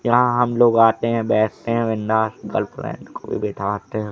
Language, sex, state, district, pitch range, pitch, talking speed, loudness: Hindi, male, Madhya Pradesh, Katni, 110-115 Hz, 115 Hz, 175 wpm, -20 LUFS